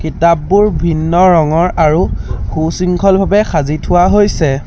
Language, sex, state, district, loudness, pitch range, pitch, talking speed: Assamese, male, Assam, Sonitpur, -12 LUFS, 155-185 Hz, 170 Hz, 115 wpm